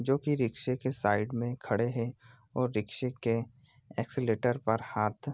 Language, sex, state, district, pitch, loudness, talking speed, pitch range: Hindi, male, Bihar, East Champaran, 120 Hz, -32 LUFS, 190 wpm, 115-130 Hz